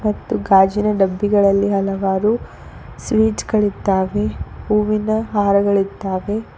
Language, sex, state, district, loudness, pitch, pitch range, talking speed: Kannada, female, Karnataka, Koppal, -17 LUFS, 205 Hz, 195-215 Hz, 80 wpm